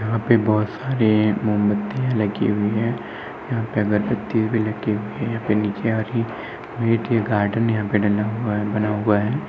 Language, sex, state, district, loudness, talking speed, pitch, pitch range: Hindi, male, Uttar Pradesh, Etah, -21 LUFS, 170 wpm, 110 Hz, 105-115 Hz